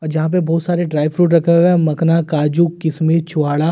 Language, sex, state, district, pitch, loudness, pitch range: Hindi, male, Delhi, New Delhi, 165 Hz, -15 LUFS, 155-170 Hz